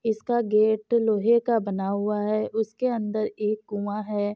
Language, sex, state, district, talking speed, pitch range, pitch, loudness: Hindi, female, Uttar Pradesh, Jyotiba Phule Nagar, 165 wpm, 210-225 Hz, 215 Hz, -25 LUFS